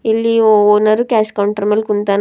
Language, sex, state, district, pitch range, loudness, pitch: Kannada, female, Karnataka, Bidar, 205-220 Hz, -13 LUFS, 215 Hz